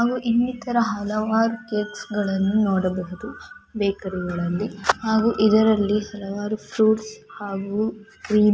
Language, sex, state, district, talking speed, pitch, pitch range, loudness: Kannada, female, Karnataka, Mysore, 90 wpm, 215 Hz, 200-225 Hz, -23 LUFS